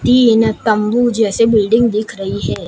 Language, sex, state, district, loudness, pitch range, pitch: Hindi, male, Gujarat, Gandhinagar, -14 LUFS, 215-235 Hz, 225 Hz